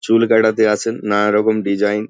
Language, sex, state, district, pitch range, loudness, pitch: Bengali, male, West Bengal, Jhargram, 105-110 Hz, -16 LUFS, 110 Hz